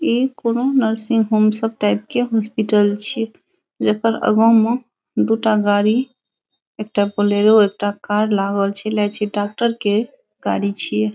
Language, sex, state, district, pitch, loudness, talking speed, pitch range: Maithili, female, Bihar, Saharsa, 215 Hz, -17 LUFS, 140 wpm, 205-230 Hz